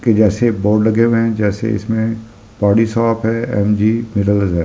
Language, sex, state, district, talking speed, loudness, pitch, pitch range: Hindi, male, Delhi, New Delhi, 220 wpm, -15 LUFS, 110 Hz, 105-115 Hz